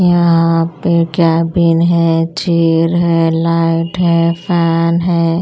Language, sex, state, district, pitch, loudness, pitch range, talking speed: Hindi, female, Punjab, Pathankot, 165 Hz, -13 LUFS, 165-170 Hz, 110 wpm